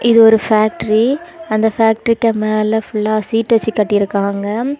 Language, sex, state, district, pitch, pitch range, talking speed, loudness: Tamil, female, Tamil Nadu, Kanyakumari, 220 Hz, 215-230 Hz, 135 wpm, -15 LUFS